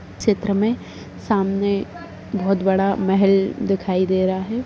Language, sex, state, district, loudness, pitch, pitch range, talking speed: Hindi, female, Maharashtra, Aurangabad, -20 LUFS, 195 Hz, 190-205 Hz, 130 wpm